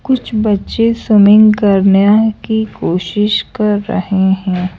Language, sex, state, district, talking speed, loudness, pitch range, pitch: Hindi, female, Madhya Pradesh, Bhopal, 115 wpm, -12 LUFS, 195-220 Hz, 210 Hz